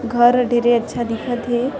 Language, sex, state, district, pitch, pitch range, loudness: Chhattisgarhi, female, Chhattisgarh, Sarguja, 240 Hz, 240-245 Hz, -18 LUFS